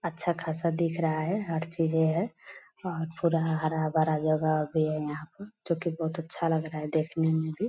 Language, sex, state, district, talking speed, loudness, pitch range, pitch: Hindi, female, Bihar, Purnia, 210 wpm, -29 LUFS, 155-170 Hz, 160 Hz